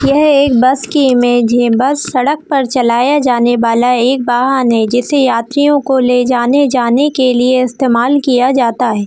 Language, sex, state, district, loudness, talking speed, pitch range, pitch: Hindi, female, Jharkhand, Jamtara, -11 LUFS, 180 wpm, 240-275 Hz, 255 Hz